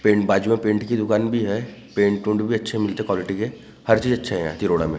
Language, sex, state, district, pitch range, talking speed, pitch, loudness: Hindi, male, Maharashtra, Gondia, 100-115 Hz, 300 wpm, 105 Hz, -22 LUFS